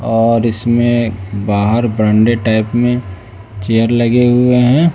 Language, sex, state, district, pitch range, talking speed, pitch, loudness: Hindi, male, Bihar, West Champaran, 110-120 Hz, 120 wpm, 115 Hz, -13 LUFS